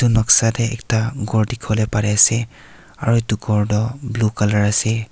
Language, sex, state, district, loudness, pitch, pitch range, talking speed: Nagamese, male, Nagaland, Kohima, -18 LUFS, 110 Hz, 105-115 Hz, 165 wpm